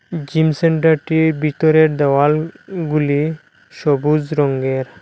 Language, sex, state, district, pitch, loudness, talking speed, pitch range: Bengali, male, Assam, Hailakandi, 155 Hz, -16 LUFS, 70 wpm, 145-160 Hz